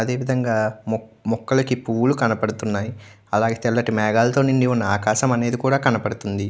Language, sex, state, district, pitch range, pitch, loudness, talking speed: Telugu, male, Andhra Pradesh, Chittoor, 110-125 Hz, 115 Hz, -21 LUFS, 120 wpm